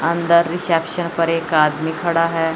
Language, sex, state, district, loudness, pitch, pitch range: Hindi, male, Chandigarh, Chandigarh, -18 LUFS, 165 Hz, 165-170 Hz